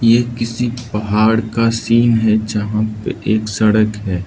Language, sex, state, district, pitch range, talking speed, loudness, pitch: Hindi, male, Arunachal Pradesh, Lower Dibang Valley, 105-115 Hz, 155 wpm, -16 LUFS, 110 Hz